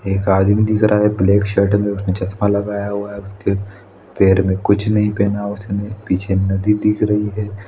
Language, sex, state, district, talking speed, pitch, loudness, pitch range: Hindi, male, Chhattisgarh, Raigarh, 195 wpm, 100 Hz, -17 LUFS, 100-105 Hz